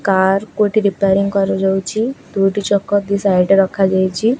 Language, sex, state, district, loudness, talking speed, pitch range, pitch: Odia, female, Odisha, Khordha, -15 LUFS, 175 wpm, 195-205 Hz, 195 Hz